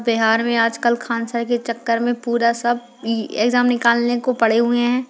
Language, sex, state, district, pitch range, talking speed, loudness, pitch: Hindi, female, Bihar, Jahanabad, 230-240 Hz, 200 wpm, -19 LUFS, 235 Hz